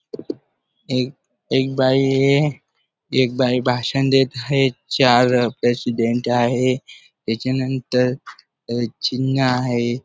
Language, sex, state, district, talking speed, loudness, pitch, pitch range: Marathi, male, Maharashtra, Dhule, 95 wpm, -19 LUFS, 125 Hz, 120-135 Hz